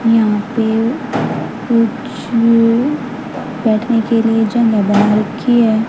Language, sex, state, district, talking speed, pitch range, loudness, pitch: Hindi, female, Haryana, Rohtak, 70 wpm, 220-245 Hz, -14 LUFS, 230 Hz